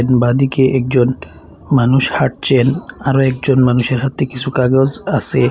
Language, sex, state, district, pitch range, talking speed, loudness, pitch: Bengali, male, Assam, Hailakandi, 125-135 Hz, 120 wpm, -14 LUFS, 130 Hz